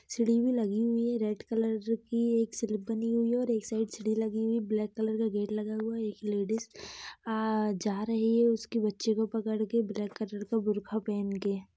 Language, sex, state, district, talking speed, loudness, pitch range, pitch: Hindi, female, Maharashtra, Aurangabad, 215 wpm, -31 LUFS, 215-230 Hz, 220 Hz